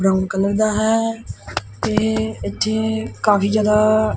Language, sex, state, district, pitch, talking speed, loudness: Punjabi, male, Punjab, Kapurthala, 190 Hz, 115 wpm, -19 LUFS